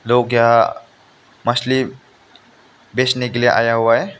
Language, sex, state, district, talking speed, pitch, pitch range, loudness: Hindi, male, Meghalaya, West Garo Hills, 130 wpm, 120 Hz, 115-130 Hz, -16 LUFS